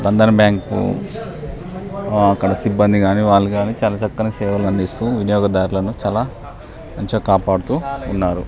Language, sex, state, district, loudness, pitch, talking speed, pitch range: Telugu, male, Telangana, Nalgonda, -17 LUFS, 105 Hz, 115 wpm, 100-115 Hz